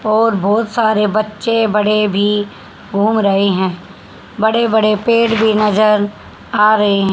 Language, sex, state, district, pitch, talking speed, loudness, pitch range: Hindi, female, Haryana, Charkhi Dadri, 215 Hz, 145 wpm, -14 LUFS, 205-220 Hz